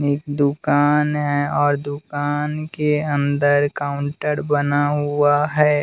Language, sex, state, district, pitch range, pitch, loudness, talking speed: Hindi, male, Bihar, West Champaran, 145-150 Hz, 145 Hz, -19 LUFS, 115 wpm